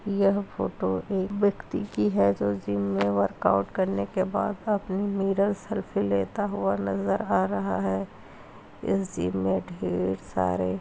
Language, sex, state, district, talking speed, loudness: Hindi, female, Uttar Pradesh, Hamirpur, 150 wpm, -27 LUFS